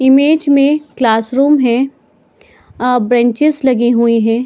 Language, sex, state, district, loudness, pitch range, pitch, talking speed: Hindi, female, Chhattisgarh, Bilaspur, -12 LUFS, 240-285 Hz, 255 Hz, 135 wpm